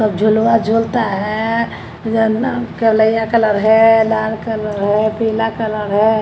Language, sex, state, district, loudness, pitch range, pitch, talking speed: Hindi, female, Bihar, Patna, -15 LUFS, 215-225 Hz, 220 Hz, 135 wpm